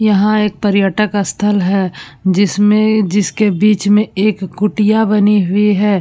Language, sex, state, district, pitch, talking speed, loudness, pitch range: Hindi, female, Uttar Pradesh, Budaun, 205 Hz, 140 wpm, -13 LUFS, 195-210 Hz